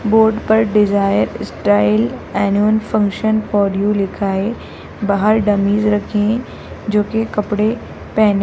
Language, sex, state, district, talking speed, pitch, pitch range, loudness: Hindi, female, Bihar, Madhepura, 135 wpm, 210 Hz, 200-215 Hz, -16 LUFS